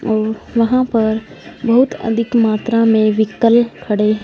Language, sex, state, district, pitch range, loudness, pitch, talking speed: Hindi, female, Punjab, Fazilka, 215-235 Hz, -15 LUFS, 225 Hz, 125 wpm